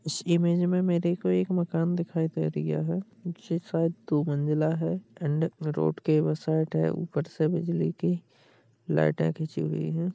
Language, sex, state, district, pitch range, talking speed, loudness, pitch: Hindi, female, Bihar, Darbhanga, 140-175 Hz, 175 wpm, -28 LUFS, 160 Hz